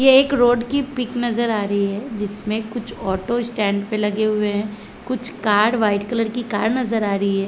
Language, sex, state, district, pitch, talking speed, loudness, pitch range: Hindi, female, Chhattisgarh, Bilaspur, 220 Hz, 215 wpm, -20 LUFS, 205-240 Hz